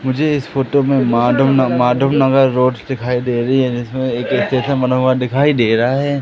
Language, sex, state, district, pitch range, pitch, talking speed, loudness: Hindi, male, Madhya Pradesh, Katni, 125-135 Hz, 130 Hz, 200 wpm, -15 LUFS